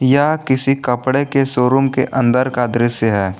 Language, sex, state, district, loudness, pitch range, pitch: Hindi, male, Jharkhand, Garhwa, -15 LUFS, 120-135 Hz, 130 Hz